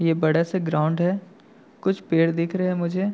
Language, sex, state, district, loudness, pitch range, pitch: Hindi, male, Jharkhand, Sahebganj, -23 LUFS, 165-190 Hz, 175 Hz